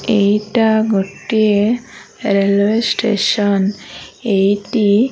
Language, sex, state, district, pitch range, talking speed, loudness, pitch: Odia, female, Odisha, Malkangiri, 200-220 Hz, 70 wpm, -15 LUFS, 210 Hz